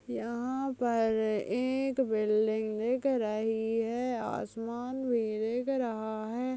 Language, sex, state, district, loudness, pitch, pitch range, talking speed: Hindi, female, Goa, North and South Goa, -32 LUFS, 230 Hz, 220-255 Hz, 110 wpm